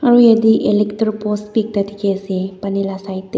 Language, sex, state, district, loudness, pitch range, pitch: Nagamese, female, Nagaland, Dimapur, -16 LUFS, 195-220 Hz, 205 Hz